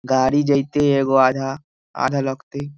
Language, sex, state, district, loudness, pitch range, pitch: Hindi, male, Bihar, Jahanabad, -19 LUFS, 130-145 Hz, 135 Hz